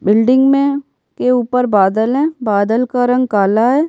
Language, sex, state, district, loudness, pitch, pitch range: Hindi, female, Bihar, Kishanganj, -14 LUFS, 245 Hz, 215-265 Hz